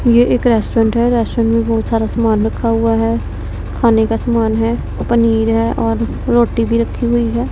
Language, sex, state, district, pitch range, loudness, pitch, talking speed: Hindi, female, Punjab, Pathankot, 225-235 Hz, -15 LUFS, 230 Hz, 190 wpm